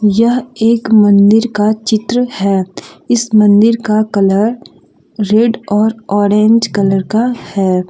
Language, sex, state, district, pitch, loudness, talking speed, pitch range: Hindi, female, Jharkhand, Deoghar, 215 Hz, -12 LUFS, 120 wpm, 205-230 Hz